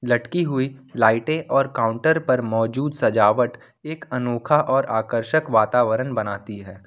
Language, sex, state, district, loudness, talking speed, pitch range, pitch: Hindi, male, Jharkhand, Ranchi, -21 LUFS, 130 wpm, 110-140 Hz, 125 Hz